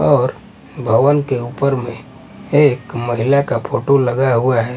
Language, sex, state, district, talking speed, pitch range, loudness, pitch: Hindi, male, Punjab, Pathankot, 165 wpm, 120-140 Hz, -16 LUFS, 130 Hz